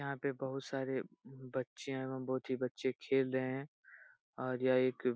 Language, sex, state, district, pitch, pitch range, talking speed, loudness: Hindi, male, Bihar, Jahanabad, 130 Hz, 130-135 Hz, 185 wpm, -38 LUFS